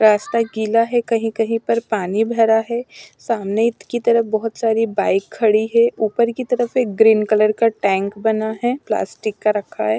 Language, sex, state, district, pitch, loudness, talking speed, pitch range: Hindi, female, Punjab, Pathankot, 225 Hz, -18 LUFS, 180 wpm, 215-230 Hz